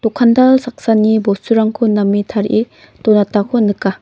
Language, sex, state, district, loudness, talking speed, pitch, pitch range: Garo, female, Meghalaya, North Garo Hills, -13 LUFS, 105 wpm, 220 Hz, 205-235 Hz